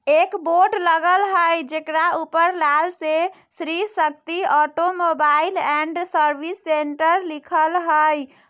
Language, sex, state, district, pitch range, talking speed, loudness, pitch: Bajjika, female, Bihar, Vaishali, 310-350 Hz, 120 wpm, -19 LUFS, 325 Hz